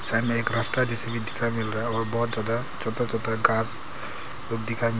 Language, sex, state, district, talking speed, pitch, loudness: Hindi, male, Arunachal Pradesh, Papum Pare, 215 wpm, 115 Hz, -26 LUFS